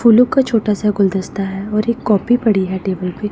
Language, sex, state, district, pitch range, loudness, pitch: Hindi, female, Punjab, Pathankot, 195-230 Hz, -16 LUFS, 210 Hz